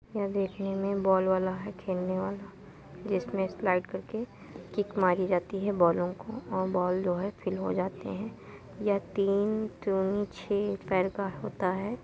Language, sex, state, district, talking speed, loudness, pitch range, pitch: Hindi, female, Uttar Pradesh, Muzaffarnagar, 165 wpm, -30 LUFS, 185-200 Hz, 195 Hz